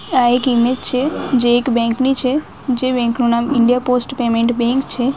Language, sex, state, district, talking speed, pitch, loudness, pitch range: Gujarati, female, Gujarat, Gandhinagar, 210 wpm, 250 Hz, -16 LUFS, 240-255 Hz